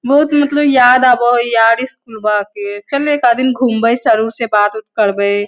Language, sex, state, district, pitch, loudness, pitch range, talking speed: Hindi, female, Bihar, Lakhisarai, 235 Hz, -13 LUFS, 215-260 Hz, 195 wpm